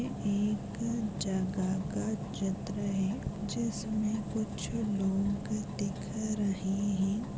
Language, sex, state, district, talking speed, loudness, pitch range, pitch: Hindi, female, Goa, North and South Goa, 100 wpm, -33 LUFS, 195-215 Hz, 200 Hz